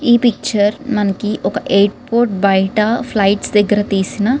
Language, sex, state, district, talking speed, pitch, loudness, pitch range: Telugu, female, Telangana, Karimnagar, 135 wpm, 210 Hz, -15 LUFS, 200-235 Hz